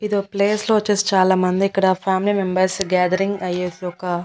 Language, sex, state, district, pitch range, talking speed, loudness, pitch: Telugu, female, Andhra Pradesh, Annamaya, 185-200 Hz, 155 wpm, -19 LUFS, 190 Hz